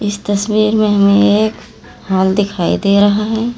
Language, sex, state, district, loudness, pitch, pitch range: Hindi, female, Uttar Pradesh, Lalitpur, -13 LUFS, 205 Hz, 200-215 Hz